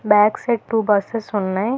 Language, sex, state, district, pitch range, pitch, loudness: Telugu, female, Telangana, Hyderabad, 205-230 Hz, 210 Hz, -19 LUFS